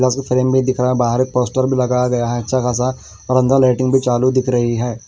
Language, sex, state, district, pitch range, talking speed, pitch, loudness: Hindi, male, Bihar, West Champaran, 125-130 Hz, 250 wpm, 125 Hz, -16 LUFS